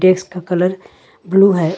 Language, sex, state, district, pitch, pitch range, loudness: Hindi, female, Jharkhand, Ranchi, 185 Hz, 180-190 Hz, -16 LUFS